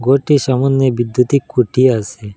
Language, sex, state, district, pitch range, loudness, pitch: Bengali, male, Assam, Hailakandi, 120-135 Hz, -14 LUFS, 130 Hz